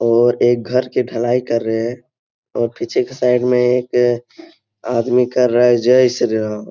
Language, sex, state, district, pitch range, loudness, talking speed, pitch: Hindi, male, Bihar, Supaul, 120-125 Hz, -16 LUFS, 190 wpm, 125 Hz